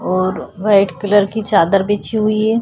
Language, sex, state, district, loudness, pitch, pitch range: Hindi, female, Chhattisgarh, Kabirdham, -15 LUFS, 205 Hz, 195-215 Hz